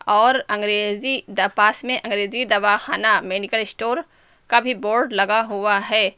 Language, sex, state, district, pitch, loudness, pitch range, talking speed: Hindi, female, Uttar Pradesh, Lucknow, 210 Hz, -19 LUFS, 205-235 Hz, 145 wpm